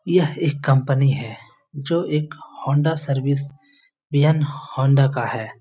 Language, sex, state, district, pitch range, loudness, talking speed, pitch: Hindi, male, Bihar, Lakhisarai, 135-155 Hz, -20 LUFS, 140 wpm, 140 Hz